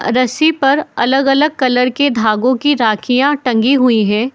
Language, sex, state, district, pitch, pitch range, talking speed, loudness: Hindi, female, Jharkhand, Jamtara, 255 Hz, 240-280 Hz, 150 wpm, -13 LUFS